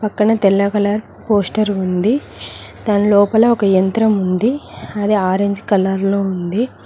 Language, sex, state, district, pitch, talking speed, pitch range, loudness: Telugu, female, Telangana, Mahabubabad, 205 Hz, 130 wpm, 195-215 Hz, -16 LUFS